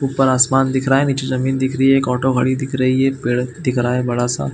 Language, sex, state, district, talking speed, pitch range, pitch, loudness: Hindi, male, Chhattisgarh, Bilaspur, 305 wpm, 125-135 Hz, 130 Hz, -17 LUFS